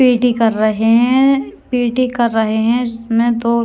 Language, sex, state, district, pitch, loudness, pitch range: Hindi, female, Haryana, Rohtak, 235 Hz, -15 LUFS, 225-245 Hz